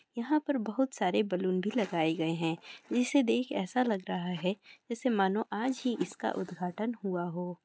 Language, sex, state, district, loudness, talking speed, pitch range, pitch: Hindi, female, Bihar, Gopalganj, -32 LUFS, 195 wpm, 180-245 Hz, 210 Hz